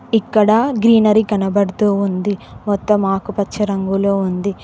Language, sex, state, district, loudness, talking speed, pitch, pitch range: Telugu, female, Telangana, Mahabubabad, -16 LUFS, 105 wpm, 205 Hz, 195-215 Hz